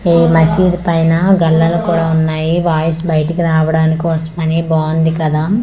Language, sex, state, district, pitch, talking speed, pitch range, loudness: Telugu, female, Andhra Pradesh, Manyam, 165 Hz, 130 wpm, 160-170 Hz, -13 LUFS